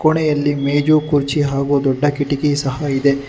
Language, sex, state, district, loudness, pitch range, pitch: Kannada, male, Karnataka, Bangalore, -17 LUFS, 140-150 Hz, 145 Hz